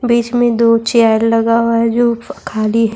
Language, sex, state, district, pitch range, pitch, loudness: Urdu, female, Bihar, Saharsa, 230-235 Hz, 230 Hz, -13 LUFS